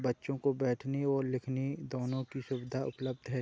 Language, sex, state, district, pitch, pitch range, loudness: Hindi, male, Uttar Pradesh, Hamirpur, 130 Hz, 130-135 Hz, -35 LUFS